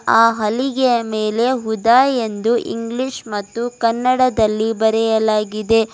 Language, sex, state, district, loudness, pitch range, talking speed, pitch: Kannada, female, Karnataka, Bidar, -17 LUFS, 220-245 Hz, 90 wpm, 225 Hz